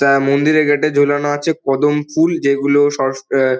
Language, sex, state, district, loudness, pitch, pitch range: Bengali, male, West Bengal, Dakshin Dinajpur, -15 LUFS, 145 Hz, 140-150 Hz